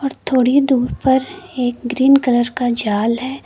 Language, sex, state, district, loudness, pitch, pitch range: Hindi, female, Uttar Pradesh, Lucknow, -16 LUFS, 255 Hz, 245-270 Hz